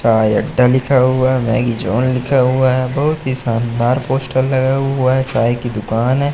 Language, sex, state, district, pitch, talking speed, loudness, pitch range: Hindi, male, Madhya Pradesh, Katni, 130 Hz, 200 wpm, -15 LUFS, 120-130 Hz